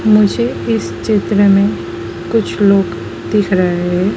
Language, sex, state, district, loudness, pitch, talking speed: Hindi, female, Madhya Pradesh, Dhar, -14 LUFS, 185 Hz, 130 wpm